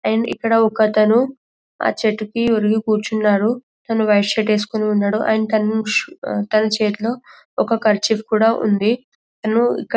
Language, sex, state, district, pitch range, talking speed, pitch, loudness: Telugu, female, Telangana, Karimnagar, 215-225 Hz, 110 wpm, 220 Hz, -18 LUFS